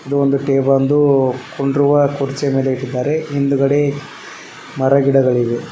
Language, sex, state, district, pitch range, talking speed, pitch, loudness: Kannada, male, Karnataka, Koppal, 135-140 Hz, 105 wpm, 140 Hz, -16 LUFS